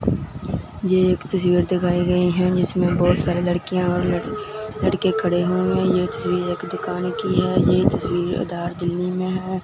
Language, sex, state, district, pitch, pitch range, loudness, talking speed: Hindi, male, Punjab, Fazilka, 180 Hz, 175-185 Hz, -21 LUFS, 155 wpm